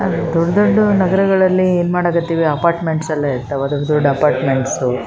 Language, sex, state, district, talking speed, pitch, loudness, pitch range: Kannada, female, Karnataka, Raichur, 155 wpm, 165 Hz, -15 LUFS, 145-185 Hz